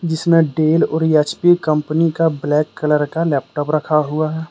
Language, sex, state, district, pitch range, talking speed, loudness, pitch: Hindi, male, Jharkhand, Deoghar, 150-160 Hz, 135 wpm, -16 LUFS, 155 Hz